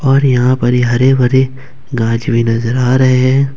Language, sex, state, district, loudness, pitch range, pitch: Hindi, male, Jharkhand, Ranchi, -12 LUFS, 120-135 Hz, 130 Hz